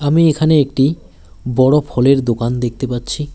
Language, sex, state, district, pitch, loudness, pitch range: Bengali, male, West Bengal, Alipurduar, 135 Hz, -15 LUFS, 120-150 Hz